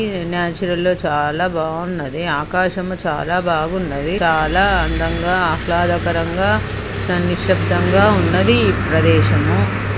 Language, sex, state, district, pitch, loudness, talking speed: Telugu, male, Andhra Pradesh, Krishna, 150 Hz, -17 LUFS, 70 wpm